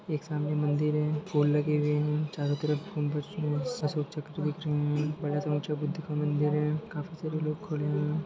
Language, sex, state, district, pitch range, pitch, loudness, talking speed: Hindi, male, Jharkhand, Jamtara, 150-155 Hz, 150 Hz, -30 LUFS, 205 wpm